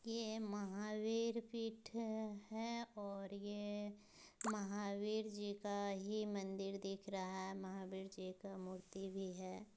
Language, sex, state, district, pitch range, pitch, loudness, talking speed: Hindi, female, Bihar, Muzaffarpur, 195-220 Hz, 205 Hz, -46 LUFS, 125 wpm